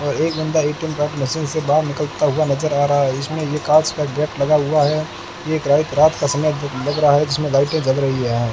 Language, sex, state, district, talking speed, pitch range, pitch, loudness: Hindi, male, Rajasthan, Bikaner, 230 wpm, 145-155 Hz, 150 Hz, -18 LUFS